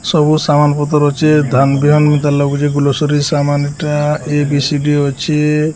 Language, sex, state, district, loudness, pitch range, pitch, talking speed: Odia, male, Odisha, Sambalpur, -13 LUFS, 145-150 Hz, 145 Hz, 125 wpm